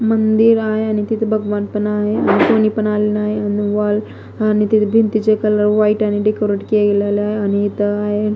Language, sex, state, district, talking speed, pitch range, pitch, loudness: Marathi, female, Maharashtra, Mumbai Suburban, 185 wpm, 210-215 Hz, 210 Hz, -16 LUFS